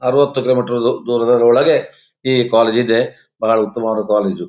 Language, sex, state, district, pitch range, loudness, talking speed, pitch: Kannada, male, Karnataka, Dakshina Kannada, 115-130 Hz, -15 LUFS, 135 wpm, 120 Hz